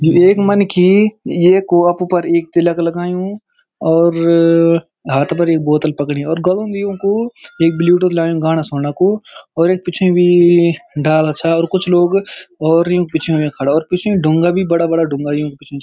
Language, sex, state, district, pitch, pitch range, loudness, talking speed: Garhwali, male, Uttarakhand, Uttarkashi, 170 Hz, 160-185 Hz, -14 LUFS, 175 wpm